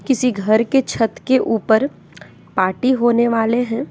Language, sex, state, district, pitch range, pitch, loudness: Hindi, female, Bihar, West Champaran, 220-255 Hz, 235 Hz, -17 LUFS